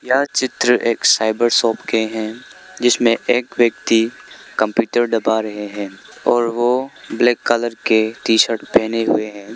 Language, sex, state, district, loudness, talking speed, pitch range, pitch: Hindi, male, Arunachal Pradesh, Lower Dibang Valley, -17 LUFS, 145 wpm, 110-120 Hz, 115 Hz